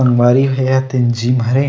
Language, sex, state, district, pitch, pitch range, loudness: Chhattisgarhi, male, Chhattisgarh, Bastar, 125 Hz, 120-130 Hz, -14 LUFS